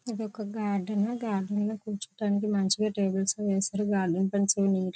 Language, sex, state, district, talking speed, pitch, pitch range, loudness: Telugu, female, Andhra Pradesh, Visakhapatnam, 145 wpm, 205 Hz, 195-210 Hz, -28 LUFS